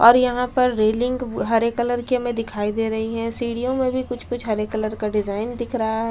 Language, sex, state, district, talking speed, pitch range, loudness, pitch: Hindi, female, Delhi, New Delhi, 225 wpm, 220-245 Hz, -22 LUFS, 230 Hz